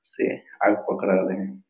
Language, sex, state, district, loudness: Hindi, male, Chhattisgarh, Raigarh, -24 LUFS